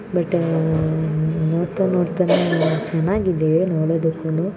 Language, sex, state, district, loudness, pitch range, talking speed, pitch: Kannada, female, Karnataka, Mysore, -20 LUFS, 160-180 Hz, 225 wpm, 165 Hz